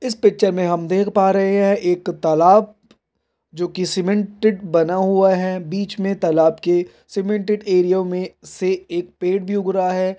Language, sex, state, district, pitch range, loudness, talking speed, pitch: Hindi, male, Bihar, Jahanabad, 180-200 Hz, -18 LUFS, 185 wpm, 190 Hz